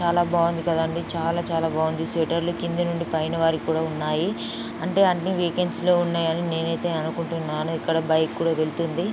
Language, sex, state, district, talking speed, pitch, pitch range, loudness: Telugu, female, Andhra Pradesh, Chittoor, 150 wpm, 165 Hz, 160-170 Hz, -24 LUFS